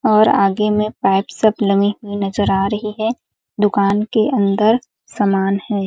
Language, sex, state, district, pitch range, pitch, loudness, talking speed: Hindi, female, Chhattisgarh, Sarguja, 200-215 Hz, 210 Hz, -17 LUFS, 165 wpm